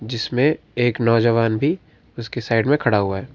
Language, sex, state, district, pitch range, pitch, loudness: Hindi, male, Karnataka, Bangalore, 115-130 Hz, 115 Hz, -19 LUFS